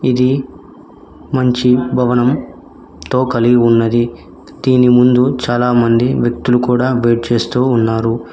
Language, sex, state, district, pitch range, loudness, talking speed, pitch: Telugu, male, Telangana, Mahabubabad, 120-125 Hz, -13 LUFS, 110 wpm, 125 Hz